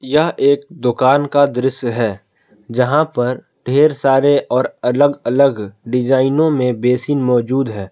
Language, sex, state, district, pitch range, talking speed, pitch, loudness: Hindi, male, Jharkhand, Palamu, 120-140 Hz, 135 wpm, 130 Hz, -15 LUFS